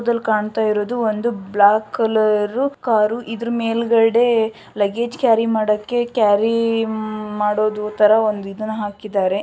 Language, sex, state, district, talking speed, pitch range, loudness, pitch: Kannada, female, Karnataka, Shimoga, 115 wpm, 210-230 Hz, -18 LUFS, 220 Hz